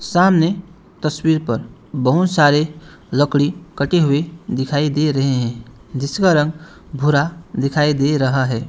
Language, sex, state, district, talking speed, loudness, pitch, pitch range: Hindi, male, West Bengal, Alipurduar, 130 wpm, -18 LUFS, 150 Hz, 140-165 Hz